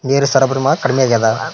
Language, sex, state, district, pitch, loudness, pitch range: Kannada, male, Karnataka, Bijapur, 135 Hz, -14 LUFS, 120-135 Hz